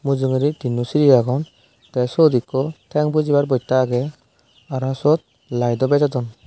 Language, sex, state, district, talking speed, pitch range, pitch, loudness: Chakma, male, Tripura, Dhalai, 140 wpm, 125-145 Hz, 130 Hz, -19 LUFS